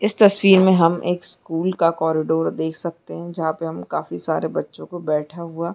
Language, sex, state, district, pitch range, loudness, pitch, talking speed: Hindi, female, Chhattisgarh, Bilaspur, 160-180 Hz, -20 LUFS, 170 Hz, 210 wpm